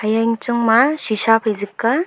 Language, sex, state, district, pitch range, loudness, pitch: Wancho, female, Arunachal Pradesh, Longding, 220-235 Hz, -17 LUFS, 225 Hz